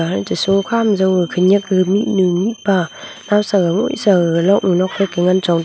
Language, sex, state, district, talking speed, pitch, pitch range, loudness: Wancho, female, Arunachal Pradesh, Longding, 160 wpm, 190 Hz, 180-205 Hz, -15 LUFS